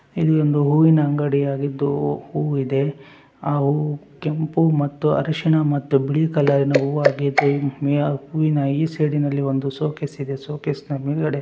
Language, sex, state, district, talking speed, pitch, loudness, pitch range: Kannada, male, Karnataka, Raichur, 130 wpm, 145 Hz, -20 LUFS, 140-150 Hz